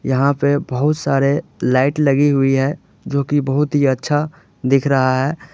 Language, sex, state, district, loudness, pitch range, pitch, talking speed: Hindi, male, Uttar Pradesh, Lalitpur, -17 LUFS, 135-145 Hz, 140 Hz, 175 wpm